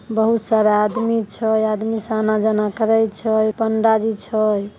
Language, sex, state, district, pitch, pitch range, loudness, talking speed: Maithili, female, Bihar, Samastipur, 220 Hz, 215-225 Hz, -18 LUFS, 160 wpm